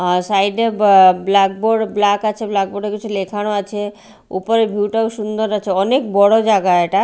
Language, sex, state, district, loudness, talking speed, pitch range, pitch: Bengali, female, Odisha, Malkangiri, -16 LUFS, 180 wpm, 195-220 Hz, 205 Hz